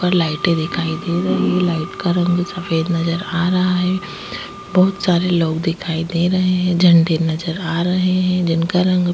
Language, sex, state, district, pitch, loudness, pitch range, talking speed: Hindi, female, Chhattisgarh, Kabirdham, 175 Hz, -17 LUFS, 165-180 Hz, 185 wpm